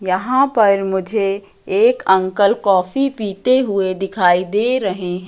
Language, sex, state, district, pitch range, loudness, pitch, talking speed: Hindi, female, Madhya Pradesh, Katni, 190-240 Hz, -16 LUFS, 195 Hz, 125 wpm